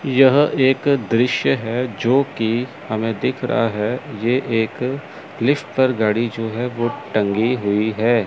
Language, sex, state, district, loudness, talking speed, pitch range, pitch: Hindi, male, Chandigarh, Chandigarh, -19 LUFS, 150 wpm, 110-130 Hz, 120 Hz